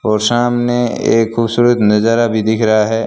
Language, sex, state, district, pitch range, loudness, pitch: Hindi, male, Rajasthan, Bikaner, 110-120 Hz, -13 LUFS, 115 Hz